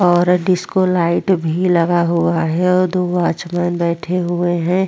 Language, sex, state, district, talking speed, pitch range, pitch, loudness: Hindi, female, Chhattisgarh, Korba, 160 wpm, 170-180 Hz, 175 Hz, -16 LUFS